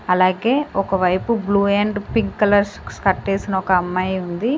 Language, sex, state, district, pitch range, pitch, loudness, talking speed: Telugu, female, Andhra Pradesh, Sri Satya Sai, 185-210 Hz, 195 Hz, -19 LUFS, 155 wpm